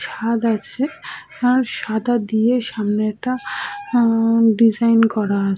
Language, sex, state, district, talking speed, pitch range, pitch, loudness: Bengali, female, West Bengal, Jhargram, 105 wpm, 220-245 Hz, 230 Hz, -18 LUFS